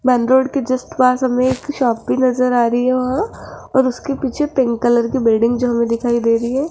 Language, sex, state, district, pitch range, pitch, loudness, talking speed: Hindi, female, Rajasthan, Jaipur, 240-260 Hz, 250 Hz, -16 LUFS, 230 wpm